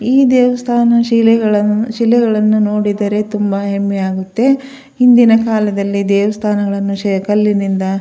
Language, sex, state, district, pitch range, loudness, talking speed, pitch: Kannada, female, Karnataka, Belgaum, 200-235 Hz, -13 LUFS, 90 wpm, 210 Hz